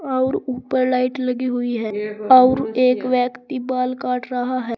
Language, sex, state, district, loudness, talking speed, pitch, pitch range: Hindi, female, Uttar Pradesh, Saharanpur, -19 LUFS, 165 wpm, 255 Hz, 245-255 Hz